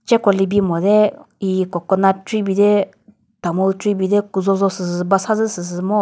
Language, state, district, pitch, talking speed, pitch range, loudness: Chakhesang, Nagaland, Dimapur, 195 Hz, 200 wpm, 190-210 Hz, -17 LUFS